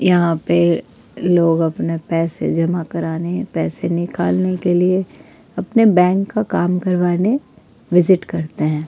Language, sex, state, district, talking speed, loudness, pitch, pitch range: Hindi, female, Delhi, New Delhi, 130 wpm, -17 LUFS, 175 Hz, 165-185 Hz